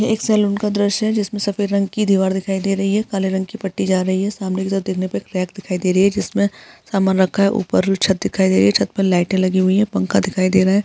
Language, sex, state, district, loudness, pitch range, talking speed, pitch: Hindi, female, Bihar, Madhepura, -18 LUFS, 190-205 Hz, 300 wpm, 195 Hz